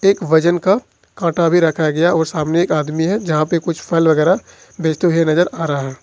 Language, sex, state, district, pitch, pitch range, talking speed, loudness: Hindi, male, Jharkhand, Ranchi, 165 Hz, 155-175 Hz, 230 wpm, -16 LUFS